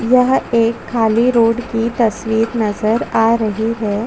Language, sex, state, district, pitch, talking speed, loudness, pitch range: Hindi, female, Chhattisgarh, Bastar, 230 Hz, 90 wpm, -16 LUFS, 220-235 Hz